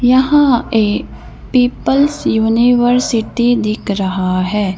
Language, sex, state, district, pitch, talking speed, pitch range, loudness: Hindi, female, Madhya Pradesh, Bhopal, 235 Hz, 90 wpm, 210-250 Hz, -14 LUFS